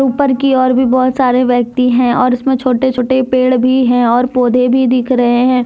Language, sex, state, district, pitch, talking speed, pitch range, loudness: Hindi, female, Jharkhand, Deoghar, 255 Hz, 225 wpm, 250-260 Hz, -12 LUFS